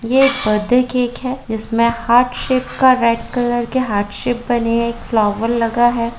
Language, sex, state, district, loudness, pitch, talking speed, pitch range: Hindi, female, Jharkhand, Jamtara, -16 LUFS, 235 Hz, 185 wpm, 230-250 Hz